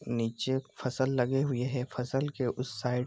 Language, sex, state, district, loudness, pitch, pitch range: Hindi, male, Bihar, East Champaran, -32 LUFS, 125 Hz, 125-130 Hz